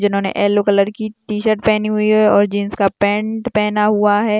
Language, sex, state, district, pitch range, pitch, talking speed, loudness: Hindi, female, Rajasthan, Churu, 205-215 Hz, 210 Hz, 190 wpm, -16 LUFS